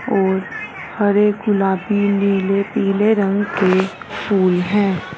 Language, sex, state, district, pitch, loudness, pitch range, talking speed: Hindi, female, Punjab, Fazilka, 200 Hz, -17 LUFS, 190-205 Hz, 105 wpm